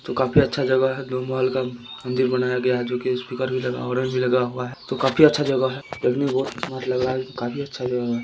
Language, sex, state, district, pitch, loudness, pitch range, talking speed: Hindi, male, Bihar, Jamui, 130 Hz, -23 LUFS, 125-130 Hz, 290 wpm